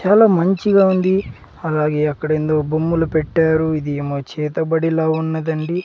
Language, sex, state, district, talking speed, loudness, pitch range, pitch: Telugu, male, Andhra Pradesh, Sri Satya Sai, 105 wpm, -17 LUFS, 155-170 Hz, 160 Hz